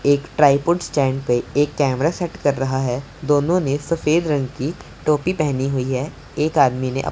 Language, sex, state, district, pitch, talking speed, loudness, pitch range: Hindi, male, Punjab, Pathankot, 145 Hz, 185 wpm, -20 LUFS, 135-155 Hz